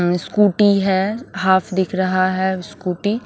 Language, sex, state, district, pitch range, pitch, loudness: Hindi, female, Haryana, Rohtak, 185-205 Hz, 190 Hz, -18 LUFS